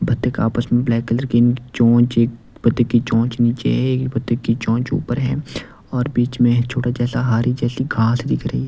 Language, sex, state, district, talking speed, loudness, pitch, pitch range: Hindi, male, Delhi, New Delhi, 200 wpm, -18 LUFS, 120 Hz, 115-125 Hz